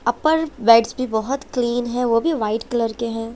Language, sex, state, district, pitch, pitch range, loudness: Hindi, female, Chandigarh, Chandigarh, 235 Hz, 230-255 Hz, -20 LUFS